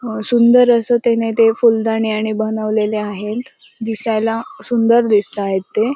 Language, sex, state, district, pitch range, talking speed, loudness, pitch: Marathi, female, Maharashtra, Sindhudurg, 215-235 Hz, 150 wpm, -16 LUFS, 225 Hz